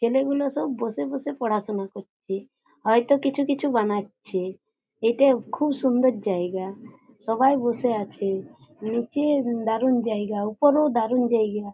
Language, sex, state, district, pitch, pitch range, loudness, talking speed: Bengali, female, West Bengal, Jhargram, 230 Hz, 210-270 Hz, -24 LUFS, 120 wpm